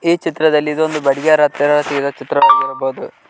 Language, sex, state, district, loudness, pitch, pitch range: Kannada, male, Karnataka, Koppal, -14 LUFS, 150 Hz, 140-160 Hz